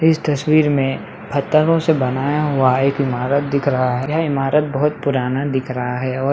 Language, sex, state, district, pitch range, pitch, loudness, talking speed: Hindi, male, Bihar, Jahanabad, 130-150 Hz, 140 Hz, -18 LUFS, 200 wpm